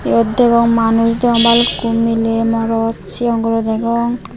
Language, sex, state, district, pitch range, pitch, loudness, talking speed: Chakma, female, Tripura, Unakoti, 225-235 Hz, 230 Hz, -14 LUFS, 135 wpm